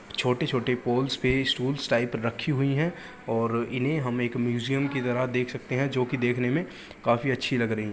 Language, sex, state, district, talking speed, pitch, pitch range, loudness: Hindi, male, Uttar Pradesh, Gorakhpur, 205 wpm, 125 Hz, 120-135 Hz, -27 LUFS